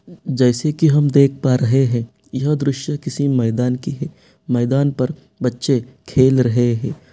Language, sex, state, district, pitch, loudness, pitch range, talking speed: Hindi, male, Bihar, Sitamarhi, 135 Hz, -18 LUFS, 125-145 Hz, 160 wpm